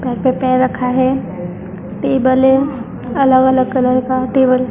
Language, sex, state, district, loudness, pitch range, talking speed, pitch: Hindi, female, Maharashtra, Mumbai Suburban, -14 LUFS, 250-260 Hz, 150 wpm, 255 Hz